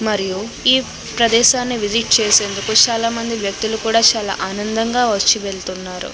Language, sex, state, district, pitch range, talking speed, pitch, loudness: Telugu, female, Andhra Pradesh, Krishna, 200-230 Hz, 125 wpm, 220 Hz, -16 LUFS